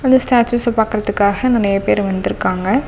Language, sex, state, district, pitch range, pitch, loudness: Tamil, female, Tamil Nadu, Namakkal, 200-250 Hz, 220 Hz, -15 LUFS